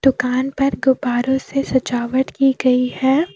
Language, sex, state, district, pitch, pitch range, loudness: Hindi, female, Jharkhand, Deoghar, 265 Hz, 250-270 Hz, -18 LUFS